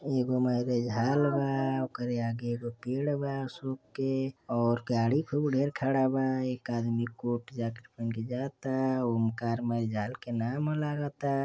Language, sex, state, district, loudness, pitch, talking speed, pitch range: Bhojpuri, male, Uttar Pradesh, Deoria, -31 LUFS, 125 Hz, 145 wpm, 120-135 Hz